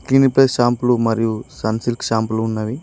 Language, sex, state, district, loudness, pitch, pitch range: Telugu, male, Telangana, Mahabubabad, -18 LUFS, 120 Hz, 110-125 Hz